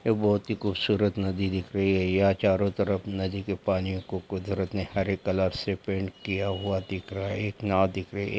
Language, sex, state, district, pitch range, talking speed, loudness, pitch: Hindi, male, Jharkhand, Sahebganj, 95-100 Hz, 220 wpm, -28 LUFS, 95 Hz